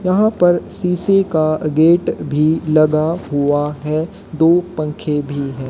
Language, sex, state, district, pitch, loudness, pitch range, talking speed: Hindi, female, Haryana, Jhajjar, 155 Hz, -16 LUFS, 150-175 Hz, 135 wpm